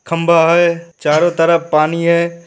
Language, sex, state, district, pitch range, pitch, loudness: Hindi, male, Uttar Pradesh, Hamirpur, 165-170 Hz, 170 Hz, -13 LUFS